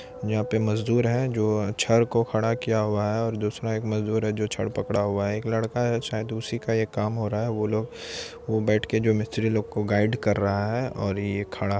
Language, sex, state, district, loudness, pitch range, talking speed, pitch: Hindi, male, Bihar, Supaul, -26 LUFS, 105-115 Hz, 250 wpm, 110 Hz